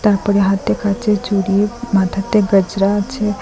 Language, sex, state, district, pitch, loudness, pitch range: Bengali, female, Assam, Hailakandi, 200 Hz, -16 LUFS, 195-210 Hz